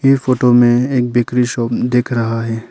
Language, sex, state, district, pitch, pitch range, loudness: Hindi, male, Arunachal Pradesh, Papum Pare, 120 Hz, 120-125 Hz, -14 LUFS